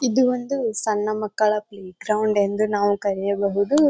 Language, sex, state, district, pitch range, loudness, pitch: Kannada, female, Karnataka, Bijapur, 200-225 Hz, -22 LUFS, 215 Hz